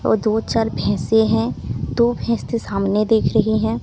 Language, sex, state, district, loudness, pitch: Hindi, female, Odisha, Sambalpur, -19 LUFS, 195 Hz